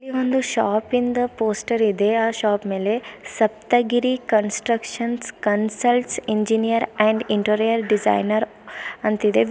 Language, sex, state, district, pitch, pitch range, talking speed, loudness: Kannada, female, Karnataka, Bidar, 220 Hz, 210-240 Hz, 100 wpm, -21 LUFS